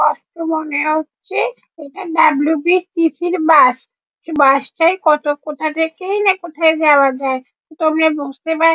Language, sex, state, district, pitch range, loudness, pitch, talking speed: Bengali, male, West Bengal, Jhargram, 295-340 Hz, -15 LUFS, 315 Hz, 135 wpm